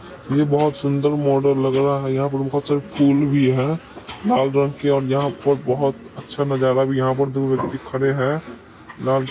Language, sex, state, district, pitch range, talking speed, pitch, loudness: Maithili, male, Bihar, Supaul, 135-145 Hz, 155 wpm, 140 Hz, -20 LUFS